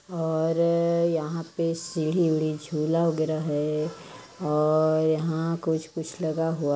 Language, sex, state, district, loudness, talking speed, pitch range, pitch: Hindi, female, Chhattisgarh, Jashpur, -26 LUFS, 125 wpm, 155-165 Hz, 160 Hz